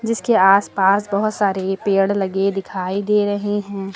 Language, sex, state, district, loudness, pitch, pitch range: Hindi, female, Uttar Pradesh, Lucknow, -18 LUFS, 200 Hz, 195-205 Hz